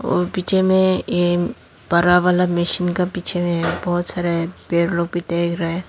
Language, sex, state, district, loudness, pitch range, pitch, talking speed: Hindi, female, Tripura, Dhalai, -19 LUFS, 170-180 Hz, 175 Hz, 185 wpm